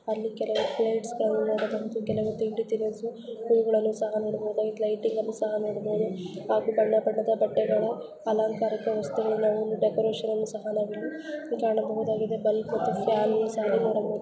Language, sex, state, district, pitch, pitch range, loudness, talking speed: Kannada, female, Karnataka, Bijapur, 220 Hz, 215-225 Hz, -27 LUFS, 140 wpm